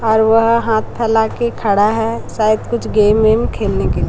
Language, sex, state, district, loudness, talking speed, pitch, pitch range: Hindi, female, Chhattisgarh, Raipur, -15 LUFS, 190 wpm, 220 Hz, 215-230 Hz